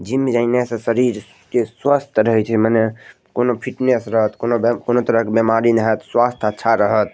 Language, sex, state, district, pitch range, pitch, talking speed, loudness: Maithili, male, Bihar, Madhepura, 110-125 Hz, 115 Hz, 195 wpm, -17 LUFS